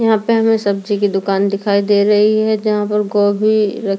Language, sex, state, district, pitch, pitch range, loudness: Hindi, female, Delhi, New Delhi, 210 Hz, 200-215 Hz, -15 LUFS